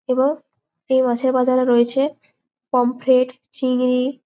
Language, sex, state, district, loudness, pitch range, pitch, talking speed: Bengali, female, West Bengal, Jalpaiguri, -19 LUFS, 250-260 Hz, 255 Hz, 100 wpm